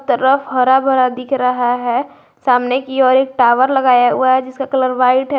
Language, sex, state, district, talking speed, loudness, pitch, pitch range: Hindi, female, Jharkhand, Garhwa, 200 wpm, -14 LUFS, 255 Hz, 250-265 Hz